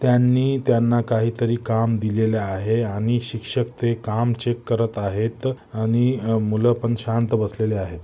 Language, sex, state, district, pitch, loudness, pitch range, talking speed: Marathi, male, Maharashtra, Nagpur, 115 Hz, -22 LUFS, 110-120 Hz, 150 wpm